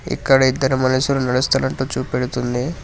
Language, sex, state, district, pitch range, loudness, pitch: Telugu, male, Telangana, Hyderabad, 125-135 Hz, -18 LUFS, 130 Hz